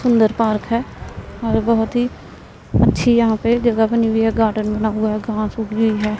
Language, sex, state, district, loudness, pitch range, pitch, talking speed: Hindi, female, Punjab, Pathankot, -18 LUFS, 215-230 Hz, 225 Hz, 205 wpm